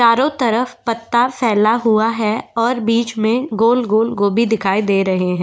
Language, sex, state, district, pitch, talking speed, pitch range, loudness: Hindi, female, Goa, North and South Goa, 230 Hz, 165 wpm, 215-235 Hz, -16 LUFS